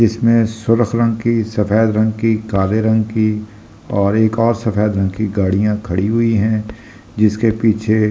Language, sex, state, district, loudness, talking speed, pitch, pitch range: Hindi, male, Delhi, New Delhi, -16 LUFS, 165 wpm, 110 Hz, 105-115 Hz